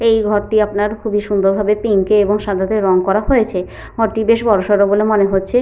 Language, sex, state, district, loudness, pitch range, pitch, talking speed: Bengali, female, West Bengal, Paschim Medinipur, -15 LUFS, 200-220 Hz, 210 Hz, 200 wpm